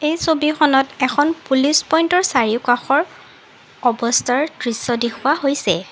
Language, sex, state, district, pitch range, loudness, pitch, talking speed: Assamese, female, Assam, Sonitpur, 245-305 Hz, -17 LUFS, 275 Hz, 100 wpm